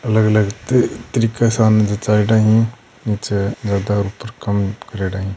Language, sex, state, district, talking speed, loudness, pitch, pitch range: Hindi, male, Rajasthan, Churu, 55 wpm, -17 LUFS, 105 Hz, 100-115 Hz